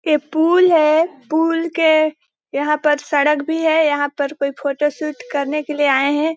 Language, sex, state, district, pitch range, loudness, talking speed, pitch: Hindi, female, Chhattisgarh, Balrampur, 290-320 Hz, -17 LUFS, 200 wpm, 300 Hz